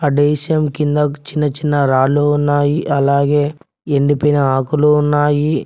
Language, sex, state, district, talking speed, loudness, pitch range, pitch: Telugu, male, Telangana, Mahabubabad, 95 wpm, -15 LUFS, 140-150 Hz, 145 Hz